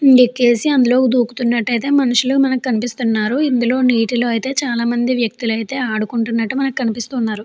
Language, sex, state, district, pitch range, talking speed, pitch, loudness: Telugu, female, Andhra Pradesh, Chittoor, 235-260 Hz, 115 wpm, 245 Hz, -16 LUFS